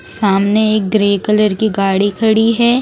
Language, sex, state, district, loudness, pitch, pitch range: Hindi, female, Haryana, Rohtak, -13 LUFS, 210 Hz, 200-220 Hz